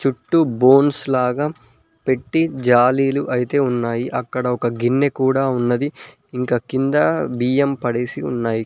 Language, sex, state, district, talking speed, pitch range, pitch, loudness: Telugu, male, Telangana, Mahabubabad, 120 wpm, 120-140 Hz, 125 Hz, -18 LUFS